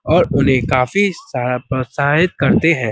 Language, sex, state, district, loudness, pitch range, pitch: Hindi, male, Uttar Pradesh, Budaun, -16 LUFS, 130-165 Hz, 140 Hz